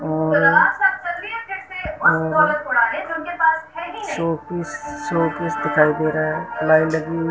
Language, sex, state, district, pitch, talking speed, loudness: Hindi, female, Punjab, Fazilka, 175 Hz, 75 wpm, -19 LUFS